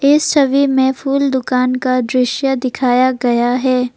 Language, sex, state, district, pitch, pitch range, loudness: Hindi, female, Assam, Kamrup Metropolitan, 255 Hz, 250-270 Hz, -14 LUFS